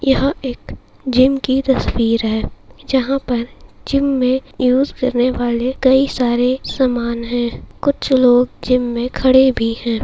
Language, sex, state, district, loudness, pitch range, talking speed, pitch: Hindi, female, Bihar, Saharsa, -16 LUFS, 240-265 Hz, 135 wpm, 255 Hz